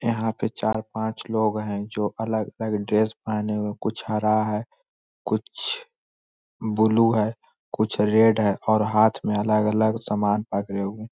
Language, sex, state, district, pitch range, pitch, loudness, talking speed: Hindi, male, Bihar, Lakhisarai, 105-110 Hz, 110 Hz, -24 LUFS, 160 wpm